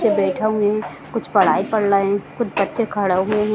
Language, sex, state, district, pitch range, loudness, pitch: Hindi, female, Bihar, Lakhisarai, 200-215 Hz, -19 LUFS, 205 Hz